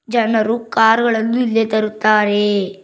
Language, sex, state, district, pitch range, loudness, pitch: Kannada, female, Karnataka, Bangalore, 215-230 Hz, -15 LUFS, 220 Hz